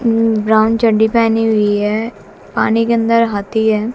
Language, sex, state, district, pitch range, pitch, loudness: Hindi, female, Haryana, Jhajjar, 215-230 Hz, 225 Hz, -14 LUFS